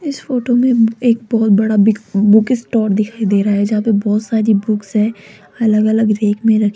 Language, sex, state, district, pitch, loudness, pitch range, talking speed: Hindi, female, Rajasthan, Jaipur, 215 Hz, -14 LUFS, 210-230 Hz, 215 wpm